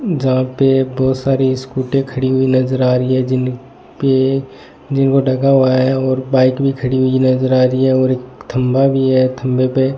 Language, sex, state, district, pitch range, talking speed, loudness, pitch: Hindi, male, Rajasthan, Bikaner, 130-135 Hz, 200 wpm, -15 LUFS, 130 Hz